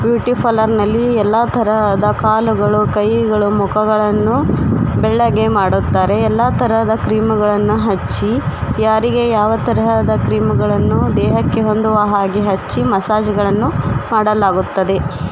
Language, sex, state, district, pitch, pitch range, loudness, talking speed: Kannada, female, Karnataka, Koppal, 215 Hz, 200-220 Hz, -14 LUFS, 105 wpm